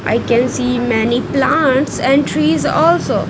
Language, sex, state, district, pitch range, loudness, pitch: English, female, Punjab, Kapurthala, 230-270 Hz, -14 LUFS, 250 Hz